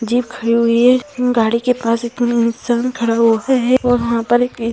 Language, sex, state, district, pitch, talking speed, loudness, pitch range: Hindi, female, Uttar Pradesh, Varanasi, 240 Hz, 180 wpm, -15 LUFS, 230-250 Hz